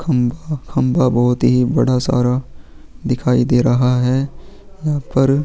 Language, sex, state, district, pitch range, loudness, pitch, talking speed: Hindi, male, Chhattisgarh, Sukma, 125-135 Hz, -16 LUFS, 125 Hz, 130 wpm